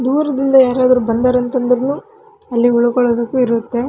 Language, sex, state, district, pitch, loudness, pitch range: Kannada, female, Karnataka, Raichur, 250 Hz, -14 LUFS, 240-270 Hz